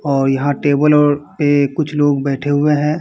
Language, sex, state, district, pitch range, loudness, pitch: Hindi, male, Uttar Pradesh, Varanasi, 140-150 Hz, -15 LUFS, 145 Hz